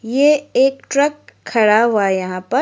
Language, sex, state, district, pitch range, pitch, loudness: Hindi, female, Arunachal Pradesh, Lower Dibang Valley, 215-275 Hz, 245 Hz, -16 LUFS